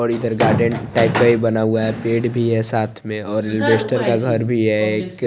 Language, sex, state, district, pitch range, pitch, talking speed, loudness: Hindi, male, Chandigarh, Chandigarh, 110-120 Hz, 115 Hz, 240 wpm, -18 LUFS